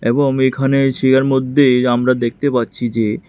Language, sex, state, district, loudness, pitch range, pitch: Bengali, male, Tripura, West Tripura, -15 LUFS, 120-135 Hz, 130 Hz